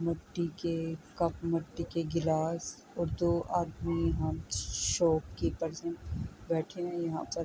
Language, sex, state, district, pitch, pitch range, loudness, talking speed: Urdu, female, Andhra Pradesh, Anantapur, 165 Hz, 155-170 Hz, -33 LUFS, 135 wpm